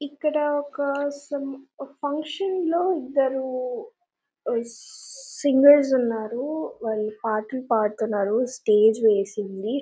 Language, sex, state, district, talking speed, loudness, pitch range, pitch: Telugu, female, Telangana, Nalgonda, 85 wpm, -23 LUFS, 225-290 Hz, 270 Hz